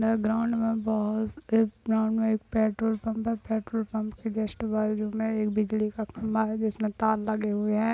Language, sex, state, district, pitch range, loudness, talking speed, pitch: Hindi, female, Bihar, Bhagalpur, 215-225 Hz, -28 LUFS, 195 wpm, 220 Hz